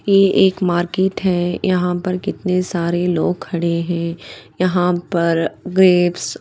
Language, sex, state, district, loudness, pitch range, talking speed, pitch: Hindi, female, Bihar, Patna, -17 LUFS, 175-185 Hz, 140 wpm, 180 Hz